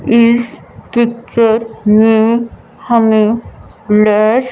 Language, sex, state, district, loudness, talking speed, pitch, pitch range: Hindi, female, Punjab, Fazilka, -12 LUFS, 65 wpm, 230 Hz, 220-235 Hz